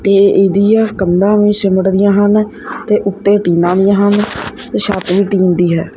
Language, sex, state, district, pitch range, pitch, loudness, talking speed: Punjabi, male, Punjab, Kapurthala, 190-210 Hz, 200 Hz, -12 LUFS, 180 wpm